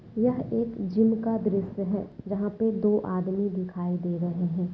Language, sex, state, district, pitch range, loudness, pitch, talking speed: Hindi, female, Bihar, Saran, 180-220 Hz, -28 LUFS, 200 Hz, 175 wpm